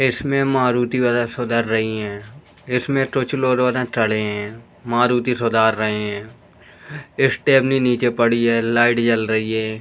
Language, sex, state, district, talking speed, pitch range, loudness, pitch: Hindi, male, Uttar Pradesh, Deoria, 130 wpm, 110-125 Hz, -19 LUFS, 120 Hz